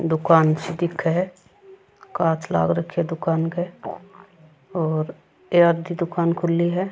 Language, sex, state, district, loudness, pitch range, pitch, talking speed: Rajasthani, female, Rajasthan, Churu, -22 LUFS, 165-175 Hz, 170 Hz, 130 wpm